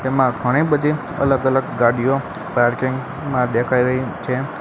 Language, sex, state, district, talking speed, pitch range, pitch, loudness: Gujarati, male, Gujarat, Gandhinagar, 145 wpm, 125-135 Hz, 130 Hz, -19 LUFS